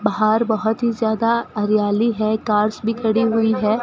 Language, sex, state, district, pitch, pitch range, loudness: Hindi, female, Rajasthan, Bikaner, 220 Hz, 215-230 Hz, -19 LUFS